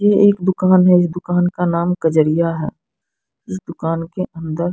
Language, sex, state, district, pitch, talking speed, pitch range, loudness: Hindi, female, Punjab, Fazilka, 175 Hz, 175 wpm, 165-185 Hz, -16 LUFS